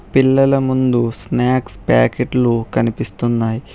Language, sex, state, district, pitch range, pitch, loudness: Telugu, male, Telangana, Hyderabad, 115-130 Hz, 120 Hz, -16 LUFS